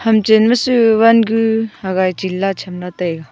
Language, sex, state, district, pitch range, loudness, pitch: Wancho, female, Arunachal Pradesh, Longding, 185-225 Hz, -14 LUFS, 220 Hz